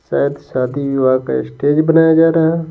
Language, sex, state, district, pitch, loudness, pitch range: Hindi, male, Bihar, Patna, 145 Hz, -14 LUFS, 130-160 Hz